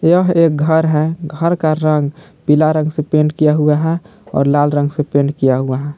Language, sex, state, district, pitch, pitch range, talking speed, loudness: Hindi, male, Jharkhand, Palamu, 150 Hz, 145-160 Hz, 220 wpm, -15 LUFS